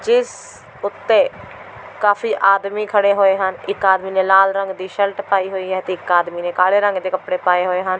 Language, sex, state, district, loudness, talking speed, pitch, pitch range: Punjabi, female, Delhi, New Delhi, -17 LUFS, 210 wpm, 190 Hz, 185-200 Hz